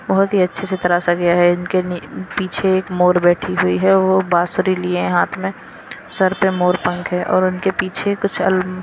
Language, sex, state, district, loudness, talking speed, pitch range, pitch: Hindi, female, Maharashtra, Washim, -17 LUFS, 205 wpm, 175-190 Hz, 180 Hz